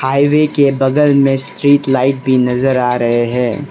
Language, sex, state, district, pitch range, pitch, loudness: Hindi, male, Arunachal Pradesh, Lower Dibang Valley, 125-140 Hz, 135 Hz, -13 LUFS